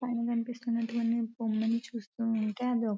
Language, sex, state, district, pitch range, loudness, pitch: Telugu, female, Telangana, Nalgonda, 225-235 Hz, -32 LUFS, 230 Hz